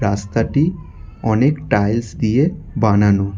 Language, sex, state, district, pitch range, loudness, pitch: Bengali, male, West Bengal, Alipurduar, 100-140 Hz, -17 LUFS, 110 Hz